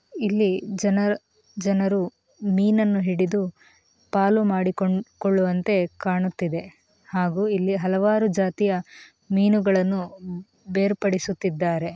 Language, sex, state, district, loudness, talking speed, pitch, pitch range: Kannada, female, Karnataka, Mysore, -23 LUFS, 70 wpm, 195 Hz, 185-205 Hz